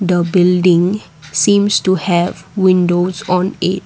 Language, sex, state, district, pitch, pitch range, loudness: English, female, Assam, Kamrup Metropolitan, 180 Hz, 175-185 Hz, -14 LUFS